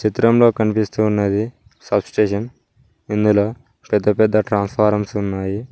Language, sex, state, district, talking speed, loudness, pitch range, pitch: Telugu, male, Telangana, Mahabubabad, 105 wpm, -18 LUFS, 105-115 Hz, 105 Hz